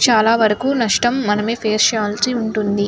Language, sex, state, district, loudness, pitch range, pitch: Telugu, female, Andhra Pradesh, Anantapur, -16 LUFS, 210-240 Hz, 220 Hz